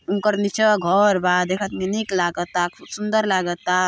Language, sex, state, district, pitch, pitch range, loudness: Hindi, female, Uttar Pradesh, Gorakhpur, 190 Hz, 180-210 Hz, -20 LUFS